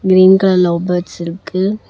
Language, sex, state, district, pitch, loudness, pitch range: Tamil, female, Tamil Nadu, Namakkal, 185 Hz, -13 LUFS, 175-190 Hz